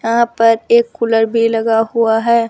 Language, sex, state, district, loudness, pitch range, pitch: Hindi, female, Rajasthan, Jaipur, -14 LUFS, 225-235 Hz, 230 Hz